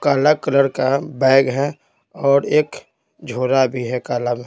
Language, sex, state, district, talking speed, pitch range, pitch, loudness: Hindi, male, Bihar, Patna, 160 wpm, 125-140 Hz, 135 Hz, -18 LUFS